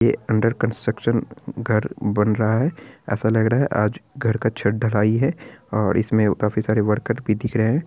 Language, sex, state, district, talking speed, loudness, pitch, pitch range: Hindi, male, Bihar, Araria, 200 wpm, -21 LUFS, 110 Hz, 105-115 Hz